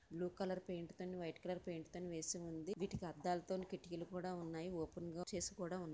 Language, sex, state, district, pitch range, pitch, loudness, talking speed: Telugu, female, Andhra Pradesh, Visakhapatnam, 170-185 Hz, 180 Hz, -47 LUFS, 200 wpm